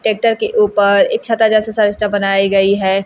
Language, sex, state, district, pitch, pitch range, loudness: Hindi, female, Bihar, Kaimur, 210 Hz, 195-225 Hz, -13 LUFS